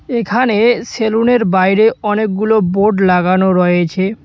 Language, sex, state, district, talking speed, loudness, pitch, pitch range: Bengali, male, West Bengal, Cooch Behar, 100 wpm, -13 LUFS, 210 Hz, 190-225 Hz